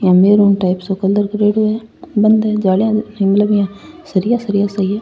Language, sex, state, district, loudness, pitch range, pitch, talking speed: Rajasthani, female, Rajasthan, Churu, -15 LUFS, 195-215 Hz, 205 Hz, 180 wpm